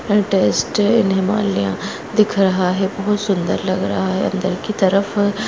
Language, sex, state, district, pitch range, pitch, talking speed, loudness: Hindi, female, Uttarakhand, Uttarkashi, 190-205 Hz, 195 Hz, 155 wpm, -18 LUFS